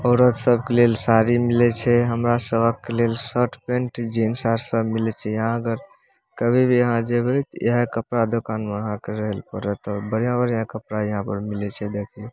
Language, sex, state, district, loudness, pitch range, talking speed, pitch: Maithili, male, Bihar, Samastipur, -21 LUFS, 110-120 Hz, 195 wpm, 115 Hz